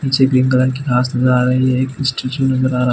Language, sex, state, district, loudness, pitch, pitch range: Hindi, male, Chhattisgarh, Bilaspur, -15 LUFS, 130 Hz, 125-130 Hz